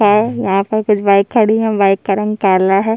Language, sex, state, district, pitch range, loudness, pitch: Hindi, male, Chhattisgarh, Sukma, 195-215 Hz, -14 LUFS, 205 Hz